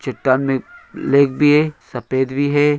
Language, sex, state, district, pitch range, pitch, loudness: Hindi, male, Bihar, Begusarai, 130-150 Hz, 140 Hz, -17 LUFS